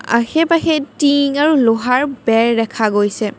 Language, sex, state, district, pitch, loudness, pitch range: Assamese, female, Assam, Kamrup Metropolitan, 250 Hz, -15 LUFS, 225-290 Hz